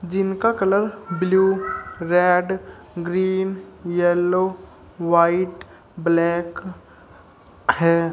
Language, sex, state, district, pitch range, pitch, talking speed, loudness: Hindi, male, Uttar Pradesh, Shamli, 170-190 Hz, 180 Hz, 65 wpm, -21 LUFS